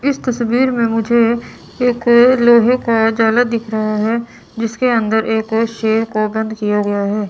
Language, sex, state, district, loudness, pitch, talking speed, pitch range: Hindi, female, Chandigarh, Chandigarh, -15 LUFS, 230 Hz, 165 wpm, 220-240 Hz